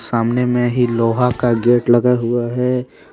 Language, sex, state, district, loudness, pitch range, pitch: Hindi, male, Jharkhand, Deoghar, -16 LUFS, 120-125 Hz, 120 Hz